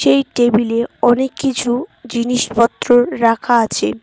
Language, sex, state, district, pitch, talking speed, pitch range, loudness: Bengali, female, West Bengal, Cooch Behar, 240 Hz, 105 wpm, 230-245 Hz, -15 LUFS